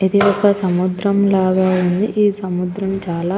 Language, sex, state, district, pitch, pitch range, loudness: Telugu, female, Telangana, Nalgonda, 190 Hz, 185-200 Hz, -16 LUFS